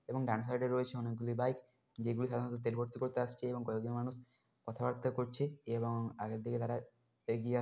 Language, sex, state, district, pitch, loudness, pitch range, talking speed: Bengali, male, West Bengal, Dakshin Dinajpur, 120 Hz, -39 LUFS, 115-125 Hz, 205 wpm